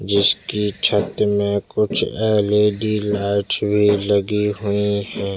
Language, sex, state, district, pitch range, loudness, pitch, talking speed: Hindi, male, Chhattisgarh, Jashpur, 100-105 Hz, -18 LUFS, 105 Hz, 110 wpm